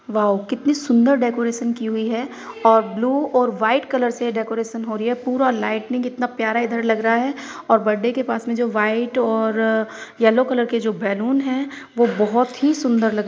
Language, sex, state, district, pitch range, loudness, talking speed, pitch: Hindi, female, Bihar, Purnia, 225-255 Hz, -20 LUFS, 210 wpm, 235 Hz